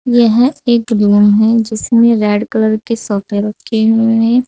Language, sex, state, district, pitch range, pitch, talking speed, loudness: Hindi, female, Uttar Pradesh, Saharanpur, 215-235 Hz, 225 Hz, 160 wpm, -12 LUFS